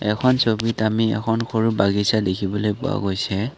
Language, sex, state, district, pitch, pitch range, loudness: Assamese, male, Assam, Kamrup Metropolitan, 110 Hz, 100-115 Hz, -21 LUFS